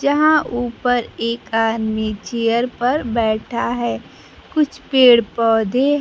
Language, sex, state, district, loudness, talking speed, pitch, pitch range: Hindi, female, Bihar, Kaimur, -18 LUFS, 110 wpm, 235 Hz, 225-260 Hz